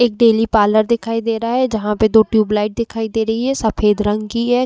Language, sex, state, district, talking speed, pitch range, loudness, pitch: Hindi, female, Uttar Pradesh, Jyotiba Phule Nagar, 255 wpm, 215-230 Hz, -16 LUFS, 225 Hz